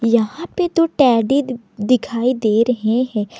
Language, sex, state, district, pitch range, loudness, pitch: Hindi, female, Jharkhand, Garhwa, 225-265 Hz, -17 LUFS, 245 Hz